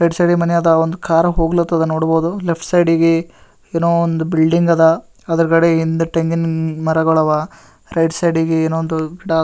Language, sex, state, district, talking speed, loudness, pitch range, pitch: Kannada, male, Karnataka, Gulbarga, 170 wpm, -16 LUFS, 160-170 Hz, 165 Hz